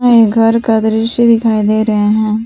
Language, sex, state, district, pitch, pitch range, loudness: Hindi, female, Jharkhand, Palamu, 225 Hz, 215-230 Hz, -11 LUFS